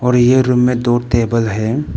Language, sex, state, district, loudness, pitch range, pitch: Hindi, male, Arunachal Pradesh, Papum Pare, -14 LUFS, 115-125 Hz, 120 Hz